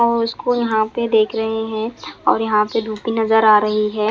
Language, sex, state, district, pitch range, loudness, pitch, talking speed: Hindi, male, Punjab, Fazilka, 215-230 Hz, -18 LUFS, 220 Hz, 250 wpm